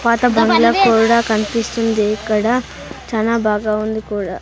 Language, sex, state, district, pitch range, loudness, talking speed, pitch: Telugu, female, Andhra Pradesh, Sri Satya Sai, 215-235 Hz, -16 LUFS, 120 wpm, 225 Hz